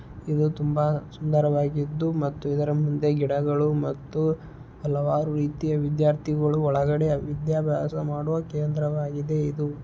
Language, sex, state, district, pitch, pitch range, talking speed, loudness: Kannada, male, Karnataka, Belgaum, 150 Hz, 145-150 Hz, 90 wpm, -25 LUFS